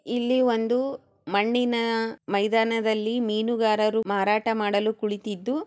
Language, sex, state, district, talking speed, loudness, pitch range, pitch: Kannada, female, Karnataka, Chamarajanagar, 85 wpm, -24 LUFS, 215-235 Hz, 225 Hz